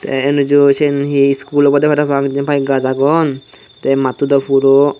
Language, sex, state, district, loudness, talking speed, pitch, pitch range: Chakma, male, Tripura, Dhalai, -13 LUFS, 155 wpm, 140 Hz, 135-145 Hz